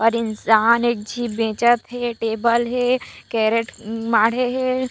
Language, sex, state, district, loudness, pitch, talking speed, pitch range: Chhattisgarhi, female, Chhattisgarh, Raigarh, -20 LUFS, 235 Hz, 135 wpm, 225-245 Hz